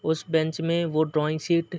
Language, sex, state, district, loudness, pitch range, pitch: Hindi, male, Uttar Pradesh, Muzaffarnagar, -25 LUFS, 155-170 Hz, 160 Hz